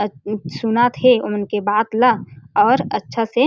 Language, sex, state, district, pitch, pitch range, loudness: Chhattisgarhi, female, Chhattisgarh, Jashpur, 220 Hz, 205-235 Hz, -18 LUFS